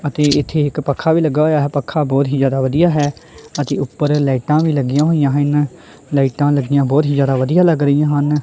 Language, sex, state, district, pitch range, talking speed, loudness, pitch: Punjabi, female, Punjab, Kapurthala, 140-150 Hz, 205 wpm, -15 LUFS, 145 Hz